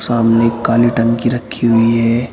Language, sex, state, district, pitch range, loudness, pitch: Hindi, male, Uttar Pradesh, Shamli, 115-120 Hz, -13 LUFS, 115 Hz